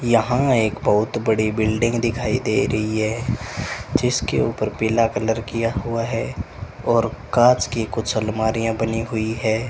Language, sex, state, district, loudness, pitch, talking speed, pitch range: Hindi, male, Rajasthan, Bikaner, -21 LUFS, 115 Hz, 150 wpm, 110-115 Hz